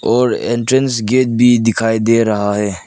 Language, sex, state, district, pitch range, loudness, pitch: Hindi, male, Arunachal Pradesh, Lower Dibang Valley, 110-125 Hz, -14 LUFS, 115 Hz